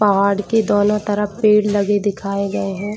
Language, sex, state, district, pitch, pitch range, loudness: Hindi, female, Jharkhand, Jamtara, 205 Hz, 200-210 Hz, -17 LUFS